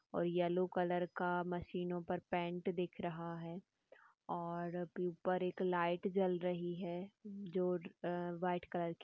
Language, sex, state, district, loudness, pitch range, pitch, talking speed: Hindi, female, Rajasthan, Nagaur, -40 LUFS, 175-185 Hz, 180 Hz, 140 wpm